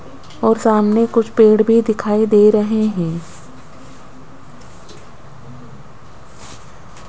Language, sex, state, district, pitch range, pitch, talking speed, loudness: Hindi, female, Rajasthan, Jaipur, 210-225 Hz, 215 Hz, 75 wpm, -14 LUFS